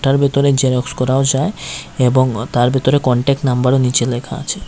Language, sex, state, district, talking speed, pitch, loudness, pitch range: Bengali, male, Tripura, West Tripura, 165 wpm, 130 Hz, -15 LUFS, 125-140 Hz